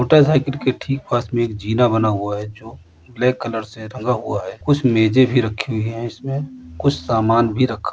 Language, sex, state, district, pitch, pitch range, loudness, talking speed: Hindi, male, Uttar Pradesh, Jalaun, 120 Hz, 110-130 Hz, -19 LUFS, 225 wpm